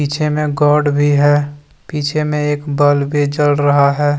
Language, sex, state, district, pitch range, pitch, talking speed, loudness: Hindi, male, Jharkhand, Deoghar, 145-150 Hz, 145 Hz, 185 wpm, -14 LUFS